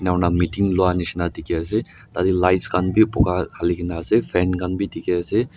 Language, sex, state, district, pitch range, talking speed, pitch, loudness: Nagamese, male, Nagaland, Dimapur, 85-95 Hz, 195 wpm, 90 Hz, -21 LUFS